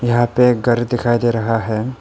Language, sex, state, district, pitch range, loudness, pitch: Hindi, male, Arunachal Pradesh, Papum Pare, 115-120 Hz, -16 LUFS, 120 Hz